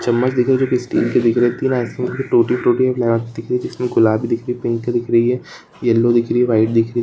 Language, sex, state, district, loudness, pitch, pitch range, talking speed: Hindi, female, Rajasthan, Churu, -17 LUFS, 120 Hz, 115-125 Hz, 240 wpm